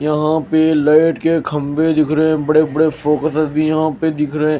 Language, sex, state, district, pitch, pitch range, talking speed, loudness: Hindi, male, Bihar, Patna, 155 Hz, 150-160 Hz, 210 wpm, -15 LUFS